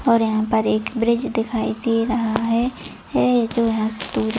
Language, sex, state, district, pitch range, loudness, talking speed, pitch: Hindi, female, Chhattisgarh, Bilaspur, 220-235 Hz, -20 LUFS, 190 wpm, 230 Hz